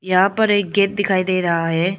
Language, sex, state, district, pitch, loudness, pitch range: Hindi, female, Arunachal Pradesh, Lower Dibang Valley, 190 Hz, -17 LUFS, 180-200 Hz